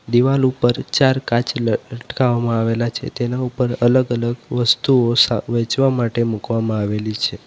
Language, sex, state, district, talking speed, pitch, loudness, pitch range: Gujarati, male, Gujarat, Valsad, 155 wpm, 120 Hz, -18 LUFS, 115-125 Hz